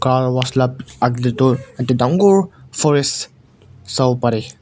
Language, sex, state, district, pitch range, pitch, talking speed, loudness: Nagamese, male, Nagaland, Kohima, 125-135 Hz, 130 Hz, 145 wpm, -17 LUFS